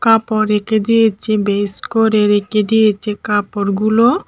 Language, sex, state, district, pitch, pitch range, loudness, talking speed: Bengali, female, Tripura, Dhalai, 215 Hz, 205-225 Hz, -15 LUFS, 110 wpm